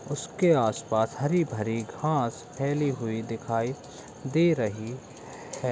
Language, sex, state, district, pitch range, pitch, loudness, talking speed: Hindi, male, Uttar Pradesh, Etah, 115-150 Hz, 125 Hz, -28 LUFS, 125 wpm